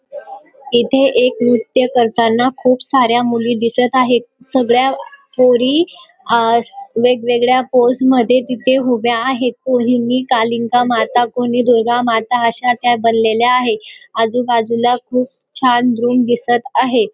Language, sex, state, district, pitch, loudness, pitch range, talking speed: Marathi, female, Maharashtra, Dhule, 245 Hz, -14 LUFS, 240-255 Hz, 115 wpm